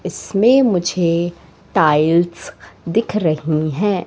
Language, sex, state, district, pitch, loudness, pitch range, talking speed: Hindi, female, Madhya Pradesh, Katni, 175 Hz, -17 LUFS, 160-200 Hz, 90 wpm